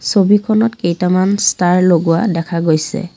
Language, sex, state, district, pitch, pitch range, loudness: Assamese, female, Assam, Kamrup Metropolitan, 185 Hz, 170-205 Hz, -14 LUFS